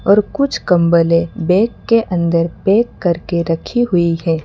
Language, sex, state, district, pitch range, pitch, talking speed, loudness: Hindi, female, Gujarat, Valsad, 170-210 Hz, 175 Hz, 160 wpm, -15 LUFS